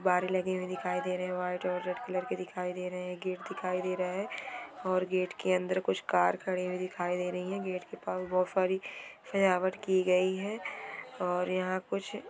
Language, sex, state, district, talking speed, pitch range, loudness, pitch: Hindi, female, Bihar, Gopalganj, 220 wpm, 180-185 Hz, -33 LUFS, 185 Hz